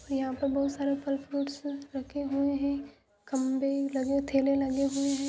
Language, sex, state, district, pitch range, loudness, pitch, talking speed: Hindi, female, Jharkhand, Jamtara, 275-280 Hz, -30 LUFS, 275 Hz, 170 wpm